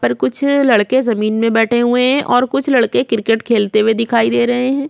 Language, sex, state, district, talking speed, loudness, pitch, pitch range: Hindi, female, Chhattisgarh, Korba, 220 wpm, -14 LUFS, 235 Hz, 225-255 Hz